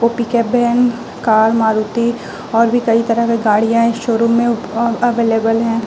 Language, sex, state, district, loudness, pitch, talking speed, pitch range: Hindi, female, Uttar Pradesh, Muzaffarnagar, -15 LUFS, 230 Hz, 185 wpm, 225-235 Hz